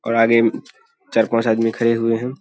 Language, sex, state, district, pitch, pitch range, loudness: Hindi, male, Bihar, Saharsa, 115 Hz, 115-125 Hz, -18 LUFS